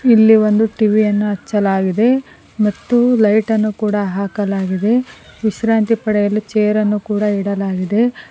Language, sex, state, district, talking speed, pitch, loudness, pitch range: Kannada, female, Karnataka, Koppal, 130 wpm, 210 Hz, -15 LUFS, 205-220 Hz